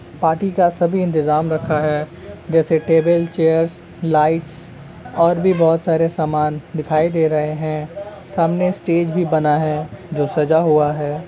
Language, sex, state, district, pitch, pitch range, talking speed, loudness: Hindi, male, Uttar Pradesh, Ghazipur, 160 Hz, 155-170 Hz, 150 wpm, -17 LUFS